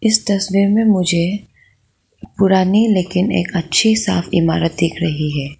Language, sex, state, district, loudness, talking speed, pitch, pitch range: Hindi, female, Arunachal Pradesh, Lower Dibang Valley, -16 LUFS, 140 wpm, 185 Hz, 170-200 Hz